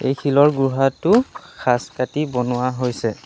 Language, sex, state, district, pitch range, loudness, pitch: Assamese, male, Assam, Sonitpur, 125-140 Hz, -19 LUFS, 135 Hz